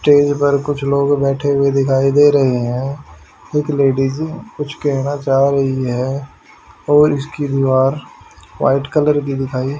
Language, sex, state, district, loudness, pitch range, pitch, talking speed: Hindi, male, Haryana, Jhajjar, -16 LUFS, 135-145 Hz, 140 Hz, 145 wpm